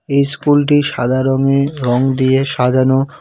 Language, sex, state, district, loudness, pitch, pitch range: Bengali, male, West Bengal, Cooch Behar, -14 LUFS, 135 Hz, 130-140 Hz